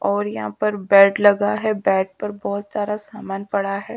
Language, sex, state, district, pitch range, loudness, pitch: Hindi, female, Bihar, Patna, 195-205 Hz, -20 LUFS, 200 Hz